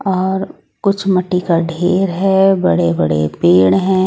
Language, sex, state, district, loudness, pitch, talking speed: Hindi, female, Odisha, Nuapada, -14 LUFS, 185 Hz, 145 wpm